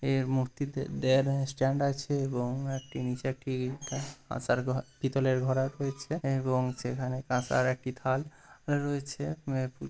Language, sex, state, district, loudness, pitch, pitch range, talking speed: Bengali, male, West Bengal, Purulia, -31 LUFS, 135 Hz, 130-140 Hz, 135 wpm